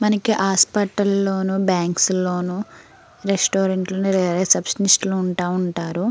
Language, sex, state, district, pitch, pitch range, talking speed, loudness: Telugu, female, Andhra Pradesh, Srikakulam, 190 Hz, 180-200 Hz, 110 wpm, -19 LUFS